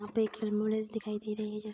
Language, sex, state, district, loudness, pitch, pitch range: Hindi, female, Bihar, Darbhanga, -34 LUFS, 215 Hz, 210-220 Hz